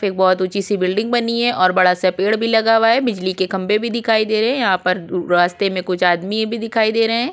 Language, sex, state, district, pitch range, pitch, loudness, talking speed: Hindi, female, Chhattisgarh, Korba, 185-225 Hz, 205 Hz, -17 LUFS, 280 wpm